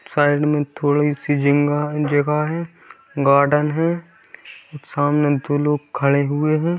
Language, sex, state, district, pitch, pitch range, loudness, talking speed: Hindi, male, Bihar, Saharsa, 150 Hz, 145-150 Hz, -19 LUFS, 140 wpm